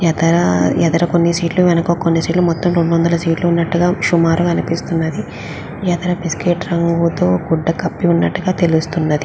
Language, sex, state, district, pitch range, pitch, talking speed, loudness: Telugu, female, Andhra Pradesh, Visakhapatnam, 165-175 Hz, 170 Hz, 155 wpm, -15 LUFS